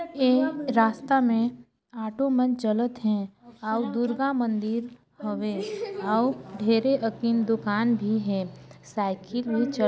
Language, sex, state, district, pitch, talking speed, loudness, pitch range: Chhattisgarhi, female, Chhattisgarh, Sarguja, 230 Hz, 120 wpm, -26 LUFS, 215-250 Hz